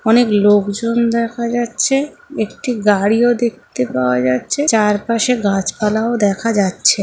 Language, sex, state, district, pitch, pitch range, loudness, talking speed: Bengali, female, West Bengal, Malda, 220 Hz, 205-235 Hz, -16 LUFS, 110 wpm